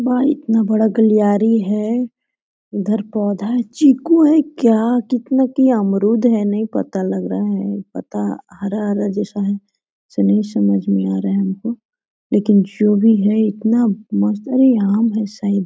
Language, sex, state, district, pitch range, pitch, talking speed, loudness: Hindi, female, Jharkhand, Sahebganj, 200-240 Hz, 210 Hz, 155 wpm, -17 LUFS